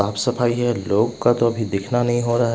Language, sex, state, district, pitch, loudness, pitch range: Hindi, male, Bihar, West Champaran, 120 Hz, -20 LUFS, 110-120 Hz